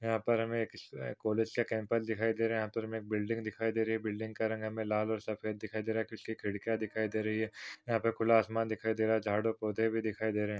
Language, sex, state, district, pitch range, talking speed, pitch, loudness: Hindi, male, Maharashtra, Pune, 110-115 Hz, 300 wpm, 110 Hz, -34 LUFS